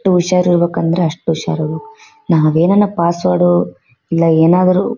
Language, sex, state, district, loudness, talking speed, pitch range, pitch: Kannada, female, Karnataka, Bellary, -14 LUFS, 120 wpm, 155-180 Hz, 170 Hz